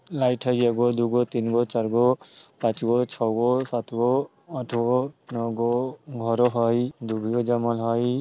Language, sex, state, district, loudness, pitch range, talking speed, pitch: Bajjika, male, Bihar, Vaishali, -24 LUFS, 115-125 Hz, 115 wpm, 120 Hz